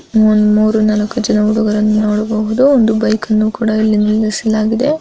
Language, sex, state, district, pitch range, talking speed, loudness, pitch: Kannada, female, Karnataka, Mysore, 215-220 Hz, 155 wpm, -13 LUFS, 215 Hz